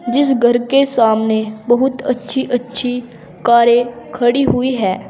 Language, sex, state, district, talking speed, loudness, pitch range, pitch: Hindi, female, Uttar Pradesh, Saharanpur, 130 wpm, -15 LUFS, 235-255 Hz, 240 Hz